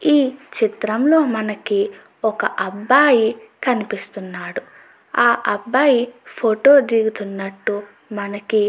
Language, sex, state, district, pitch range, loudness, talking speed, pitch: Telugu, female, Andhra Pradesh, Chittoor, 210-260 Hz, -18 LUFS, 90 wpm, 220 Hz